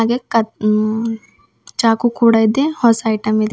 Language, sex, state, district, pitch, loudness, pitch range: Kannada, female, Karnataka, Bidar, 225 Hz, -16 LUFS, 220-235 Hz